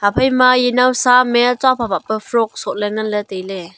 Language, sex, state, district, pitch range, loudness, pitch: Wancho, female, Arunachal Pradesh, Longding, 205-250 Hz, -15 LUFS, 235 Hz